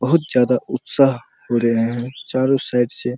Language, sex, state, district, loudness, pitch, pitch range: Hindi, male, Bihar, Araria, -18 LUFS, 125 Hz, 120-130 Hz